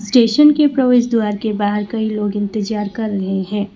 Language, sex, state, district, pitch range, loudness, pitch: Hindi, female, West Bengal, Alipurduar, 205-230 Hz, -16 LUFS, 210 Hz